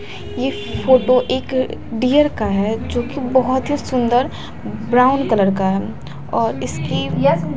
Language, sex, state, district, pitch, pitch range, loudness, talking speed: Hindi, female, Bihar, Katihar, 250 Hz, 225-260 Hz, -18 LUFS, 135 wpm